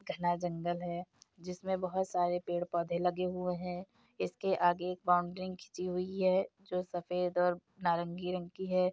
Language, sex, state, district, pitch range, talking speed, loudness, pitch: Hindi, female, Uttar Pradesh, Jyotiba Phule Nagar, 175-185 Hz, 160 wpm, -35 LUFS, 180 Hz